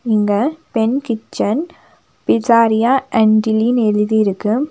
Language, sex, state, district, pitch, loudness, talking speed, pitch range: Tamil, female, Tamil Nadu, Nilgiris, 225 Hz, -15 LUFS, 90 wpm, 215-255 Hz